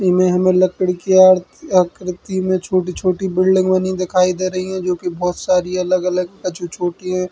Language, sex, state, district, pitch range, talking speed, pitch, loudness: Bundeli, male, Uttar Pradesh, Hamirpur, 180-185 Hz, 190 wpm, 185 Hz, -17 LUFS